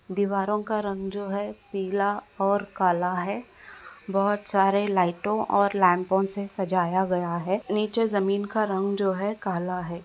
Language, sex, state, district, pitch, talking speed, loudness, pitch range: Hindi, female, Goa, North and South Goa, 200 Hz, 155 wpm, -26 LUFS, 190-205 Hz